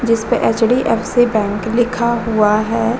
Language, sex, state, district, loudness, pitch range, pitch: Hindi, female, Bihar, Vaishali, -15 LUFS, 220-240 Hz, 230 Hz